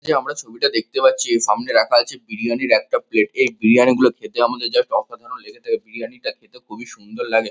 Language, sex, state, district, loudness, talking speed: Bengali, male, West Bengal, North 24 Parganas, -18 LUFS, 230 wpm